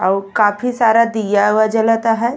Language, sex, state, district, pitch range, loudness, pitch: Bhojpuri, female, Uttar Pradesh, Ghazipur, 205-230 Hz, -15 LUFS, 225 Hz